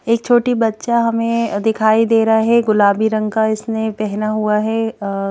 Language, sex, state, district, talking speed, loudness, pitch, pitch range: Hindi, female, Madhya Pradesh, Bhopal, 170 wpm, -16 LUFS, 220 Hz, 215-230 Hz